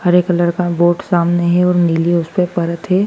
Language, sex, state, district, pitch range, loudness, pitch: Hindi, female, Madhya Pradesh, Dhar, 170-180 Hz, -15 LUFS, 175 Hz